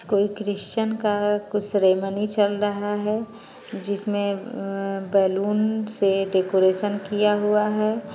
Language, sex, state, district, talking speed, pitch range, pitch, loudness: Hindi, female, Bihar, Muzaffarpur, 120 wpm, 195-210 Hz, 205 Hz, -23 LUFS